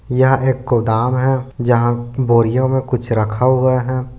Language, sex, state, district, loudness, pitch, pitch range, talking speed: Hindi, male, Chhattisgarh, Bilaspur, -16 LUFS, 125 Hz, 120-130 Hz, 155 wpm